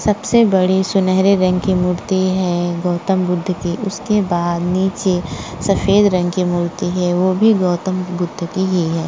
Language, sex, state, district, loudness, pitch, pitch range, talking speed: Hindi, female, Uttar Pradesh, Budaun, -17 LUFS, 185 Hz, 175-190 Hz, 165 wpm